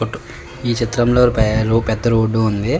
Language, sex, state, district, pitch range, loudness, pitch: Telugu, male, Telangana, Karimnagar, 110-120 Hz, -16 LUFS, 115 Hz